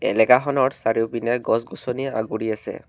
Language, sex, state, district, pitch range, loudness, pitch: Assamese, male, Assam, Kamrup Metropolitan, 110-130 Hz, -22 LUFS, 115 Hz